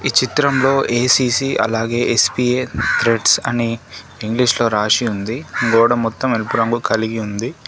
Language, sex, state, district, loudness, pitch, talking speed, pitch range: Telugu, male, Telangana, Komaram Bheem, -16 LUFS, 120 Hz, 125 wpm, 115-125 Hz